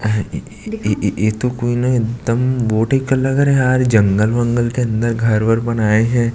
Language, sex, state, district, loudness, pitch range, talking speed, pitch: Hindi, male, Chhattisgarh, Sukma, -16 LUFS, 110-125 Hz, 200 wpm, 120 Hz